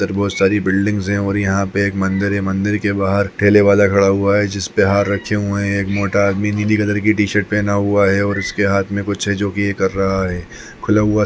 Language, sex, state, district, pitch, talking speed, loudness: Hindi, male, Chhattisgarh, Rajnandgaon, 100 Hz, 260 wpm, -16 LUFS